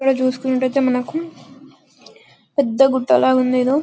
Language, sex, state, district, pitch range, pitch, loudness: Telugu, female, Telangana, Karimnagar, 255-275 Hz, 260 Hz, -17 LUFS